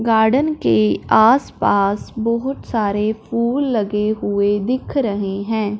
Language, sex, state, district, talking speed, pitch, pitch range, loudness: Hindi, female, Punjab, Fazilka, 115 wpm, 220 Hz, 205-240 Hz, -18 LUFS